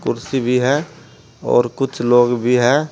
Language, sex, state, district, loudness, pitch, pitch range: Hindi, male, Uttar Pradesh, Saharanpur, -16 LUFS, 125 Hz, 120-140 Hz